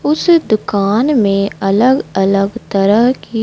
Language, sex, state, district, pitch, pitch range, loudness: Hindi, female, Madhya Pradesh, Dhar, 215 Hz, 195-255 Hz, -13 LUFS